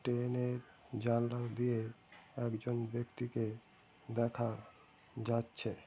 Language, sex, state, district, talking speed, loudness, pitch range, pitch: Bengali, male, West Bengal, Malda, 70 wpm, -39 LUFS, 115-125 Hz, 120 Hz